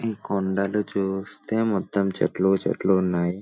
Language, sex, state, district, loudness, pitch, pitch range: Telugu, male, Telangana, Nalgonda, -24 LUFS, 95 Hz, 95-100 Hz